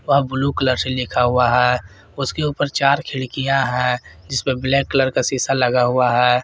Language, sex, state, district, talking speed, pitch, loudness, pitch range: Hindi, male, Jharkhand, Garhwa, 195 wpm, 130 Hz, -18 LUFS, 125-135 Hz